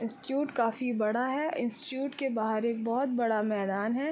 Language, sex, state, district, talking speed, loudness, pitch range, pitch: Hindi, female, Uttar Pradesh, Varanasi, 175 wpm, -31 LUFS, 225-270 Hz, 240 Hz